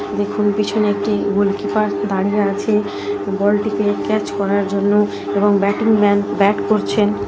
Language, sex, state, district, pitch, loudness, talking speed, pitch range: Bengali, female, West Bengal, North 24 Parganas, 205 Hz, -17 LUFS, 130 wpm, 200-210 Hz